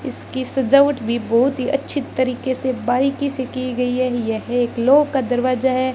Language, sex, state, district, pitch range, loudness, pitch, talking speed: Hindi, female, Rajasthan, Bikaner, 245-265 Hz, -19 LUFS, 255 Hz, 190 wpm